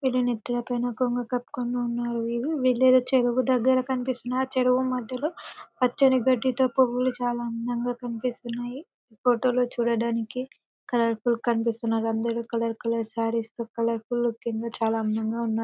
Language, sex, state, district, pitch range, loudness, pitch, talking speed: Telugu, female, Telangana, Karimnagar, 230-255 Hz, -26 LUFS, 245 Hz, 135 wpm